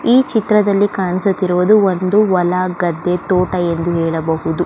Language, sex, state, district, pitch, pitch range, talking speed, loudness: Kannada, female, Karnataka, Belgaum, 185 Hz, 175-200 Hz, 115 wpm, -15 LUFS